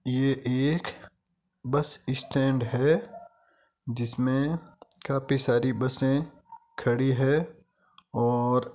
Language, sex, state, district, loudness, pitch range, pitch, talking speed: Hindi, male, Rajasthan, Nagaur, -27 LUFS, 130-165 Hz, 135 Hz, 90 wpm